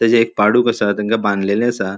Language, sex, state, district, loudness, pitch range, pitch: Konkani, male, Goa, North and South Goa, -16 LUFS, 100-115 Hz, 110 Hz